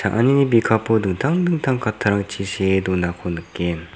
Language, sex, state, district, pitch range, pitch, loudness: Garo, male, Meghalaya, South Garo Hills, 95-115 Hz, 100 Hz, -20 LUFS